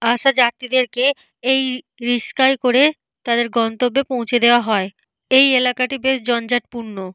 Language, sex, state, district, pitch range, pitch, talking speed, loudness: Bengali, female, Jharkhand, Jamtara, 235-260 Hz, 250 Hz, 125 wpm, -17 LUFS